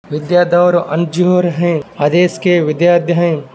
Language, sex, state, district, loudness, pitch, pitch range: Hindi, male, Maharashtra, Sindhudurg, -13 LUFS, 175 Hz, 160-175 Hz